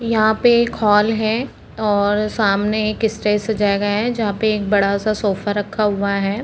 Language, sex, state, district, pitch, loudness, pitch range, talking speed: Hindi, female, Uttar Pradesh, Deoria, 210 Hz, -18 LUFS, 205-220 Hz, 185 wpm